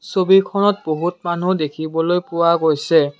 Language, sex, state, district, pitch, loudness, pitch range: Assamese, male, Assam, Kamrup Metropolitan, 170 Hz, -17 LUFS, 160-185 Hz